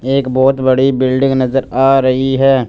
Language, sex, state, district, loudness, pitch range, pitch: Hindi, male, Punjab, Fazilka, -12 LUFS, 130-135 Hz, 135 Hz